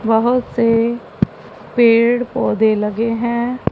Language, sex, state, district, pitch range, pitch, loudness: Hindi, female, Punjab, Pathankot, 230-240 Hz, 230 Hz, -16 LUFS